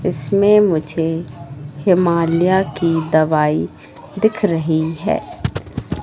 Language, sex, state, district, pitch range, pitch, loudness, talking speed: Hindi, female, Madhya Pradesh, Katni, 155-185 Hz, 165 Hz, -17 LUFS, 80 wpm